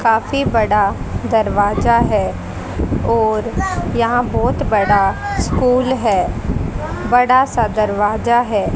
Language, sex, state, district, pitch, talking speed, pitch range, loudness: Hindi, female, Haryana, Jhajjar, 215 Hz, 95 wpm, 205-235 Hz, -16 LUFS